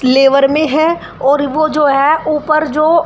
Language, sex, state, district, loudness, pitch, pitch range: Hindi, female, Uttar Pradesh, Shamli, -12 LUFS, 305 Hz, 280-310 Hz